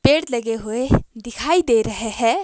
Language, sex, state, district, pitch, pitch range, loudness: Hindi, female, Himachal Pradesh, Shimla, 235 Hz, 225-290 Hz, -20 LUFS